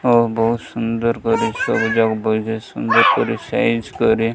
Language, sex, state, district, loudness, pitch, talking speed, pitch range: Odia, male, Odisha, Malkangiri, -18 LUFS, 115 Hz, 150 wpm, 110-115 Hz